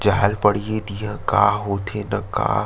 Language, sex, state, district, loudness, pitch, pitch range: Chhattisgarhi, male, Chhattisgarh, Sarguja, -21 LUFS, 105 Hz, 100-105 Hz